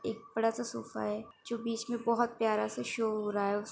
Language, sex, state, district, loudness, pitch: Hindi, female, Uttar Pradesh, Varanasi, -34 LUFS, 220 Hz